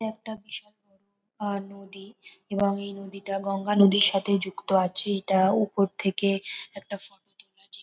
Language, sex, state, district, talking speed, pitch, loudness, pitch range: Bengali, female, West Bengal, North 24 Parganas, 160 wpm, 200 Hz, -26 LUFS, 195-205 Hz